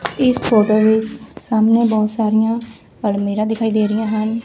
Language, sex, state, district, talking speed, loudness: Punjabi, female, Punjab, Fazilka, 150 wpm, -16 LUFS